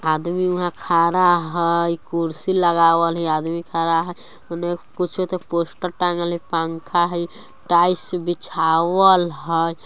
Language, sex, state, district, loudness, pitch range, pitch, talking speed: Bajjika, female, Bihar, Vaishali, -20 LUFS, 165-180 Hz, 170 Hz, 115 wpm